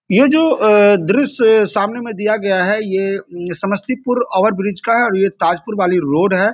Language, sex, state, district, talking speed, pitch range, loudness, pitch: Hindi, male, Bihar, Samastipur, 185 wpm, 190-225 Hz, -15 LUFS, 205 Hz